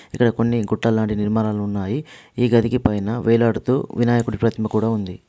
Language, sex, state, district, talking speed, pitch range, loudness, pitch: Telugu, male, Telangana, Adilabad, 160 wpm, 105-120 Hz, -20 LUFS, 115 Hz